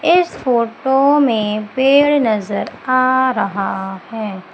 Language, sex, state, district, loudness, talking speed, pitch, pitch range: Hindi, female, Madhya Pradesh, Umaria, -16 LUFS, 105 wpm, 240 Hz, 210-265 Hz